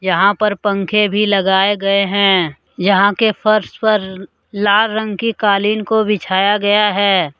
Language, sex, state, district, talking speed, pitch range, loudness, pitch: Hindi, male, Jharkhand, Deoghar, 155 wpm, 195-210 Hz, -14 LUFS, 205 Hz